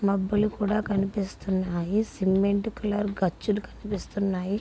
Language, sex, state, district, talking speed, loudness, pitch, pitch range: Telugu, female, Andhra Pradesh, Guntur, 90 wpm, -27 LUFS, 200 Hz, 195-210 Hz